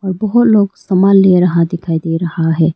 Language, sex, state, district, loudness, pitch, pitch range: Hindi, female, Arunachal Pradesh, Lower Dibang Valley, -12 LUFS, 180 Hz, 165-195 Hz